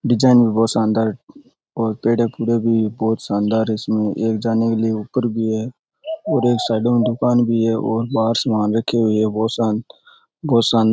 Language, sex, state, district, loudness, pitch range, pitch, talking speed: Rajasthani, male, Rajasthan, Churu, -18 LUFS, 110-120 Hz, 115 Hz, 210 wpm